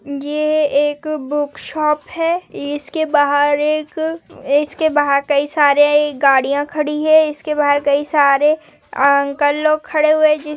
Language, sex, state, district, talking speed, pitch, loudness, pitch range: Hindi, female, Bihar, Gopalganj, 140 wpm, 295 Hz, -16 LUFS, 285-310 Hz